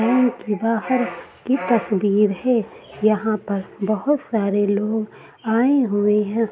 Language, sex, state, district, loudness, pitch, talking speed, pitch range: Hindi, female, Uttar Pradesh, Budaun, -20 LUFS, 220 Hz, 130 wpm, 205-240 Hz